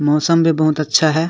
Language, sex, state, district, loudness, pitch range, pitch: Sadri, male, Chhattisgarh, Jashpur, -15 LUFS, 155-165 Hz, 155 Hz